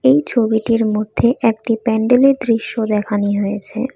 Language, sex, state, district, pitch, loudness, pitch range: Bengali, female, Assam, Kamrup Metropolitan, 225 Hz, -16 LUFS, 215-245 Hz